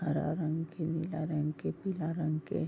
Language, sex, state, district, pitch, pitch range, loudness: Maithili, female, Bihar, Vaishali, 160 Hz, 155-165 Hz, -35 LUFS